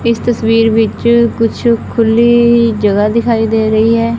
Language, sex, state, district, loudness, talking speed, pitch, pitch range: Punjabi, female, Punjab, Fazilka, -11 LUFS, 145 wpm, 230 Hz, 225-235 Hz